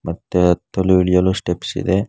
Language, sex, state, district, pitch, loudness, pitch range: Kannada, male, Karnataka, Bangalore, 90 Hz, -17 LUFS, 90-95 Hz